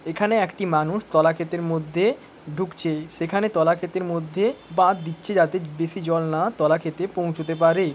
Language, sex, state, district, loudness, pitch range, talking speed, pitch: Bengali, male, West Bengal, Paschim Medinipur, -23 LUFS, 160-185 Hz, 160 wpm, 165 Hz